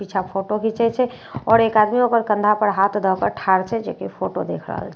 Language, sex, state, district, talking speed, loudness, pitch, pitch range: Maithili, female, Bihar, Katihar, 240 wpm, -20 LUFS, 210 Hz, 195-230 Hz